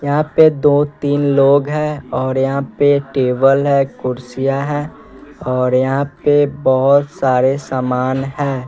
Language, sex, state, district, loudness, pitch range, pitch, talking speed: Hindi, male, Bihar, West Champaran, -15 LUFS, 130-145 Hz, 140 Hz, 140 wpm